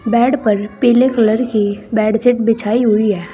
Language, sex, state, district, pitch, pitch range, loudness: Hindi, female, Uttar Pradesh, Saharanpur, 225 Hz, 210-240 Hz, -14 LUFS